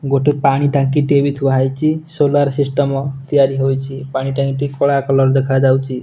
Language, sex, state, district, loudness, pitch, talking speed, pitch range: Odia, male, Odisha, Nuapada, -16 LUFS, 135 Hz, 160 wpm, 135-140 Hz